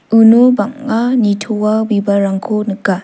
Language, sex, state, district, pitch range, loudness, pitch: Garo, female, Meghalaya, South Garo Hills, 200-225 Hz, -13 LUFS, 215 Hz